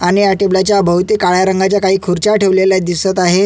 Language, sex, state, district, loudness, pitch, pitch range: Marathi, male, Maharashtra, Solapur, -12 LUFS, 190 Hz, 180-195 Hz